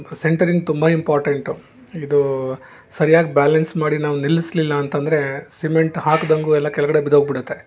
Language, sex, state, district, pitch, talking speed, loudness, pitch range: Kannada, male, Karnataka, Bangalore, 155 Hz, 115 wpm, -18 LUFS, 145-160 Hz